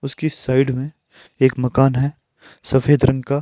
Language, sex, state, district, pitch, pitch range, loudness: Hindi, male, Himachal Pradesh, Shimla, 135 Hz, 130-145 Hz, -18 LUFS